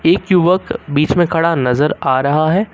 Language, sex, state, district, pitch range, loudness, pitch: Hindi, male, Uttar Pradesh, Lucknow, 145-180 Hz, -14 LUFS, 165 Hz